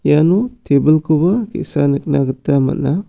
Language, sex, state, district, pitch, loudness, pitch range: Garo, male, Meghalaya, South Garo Hills, 150 Hz, -15 LUFS, 140-170 Hz